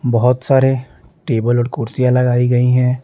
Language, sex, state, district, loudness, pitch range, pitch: Hindi, male, Bihar, Patna, -15 LUFS, 120-130 Hz, 125 Hz